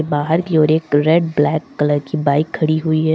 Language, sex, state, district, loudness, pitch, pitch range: Hindi, female, Uttar Pradesh, Lucknow, -16 LUFS, 155 Hz, 150-160 Hz